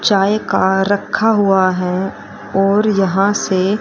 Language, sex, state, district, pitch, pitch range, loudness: Hindi, female, Haryana, Rohtak, 195 Hz, 190-205 Hz, -15 LUFS